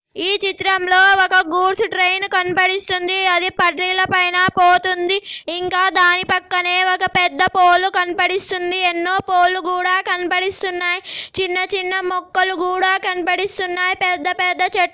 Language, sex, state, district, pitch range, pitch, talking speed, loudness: Telugu, male, Andhra Pradesh, Anantapur, 360-375 Hz, 370 Hz, 105 wpm, -16 LUFS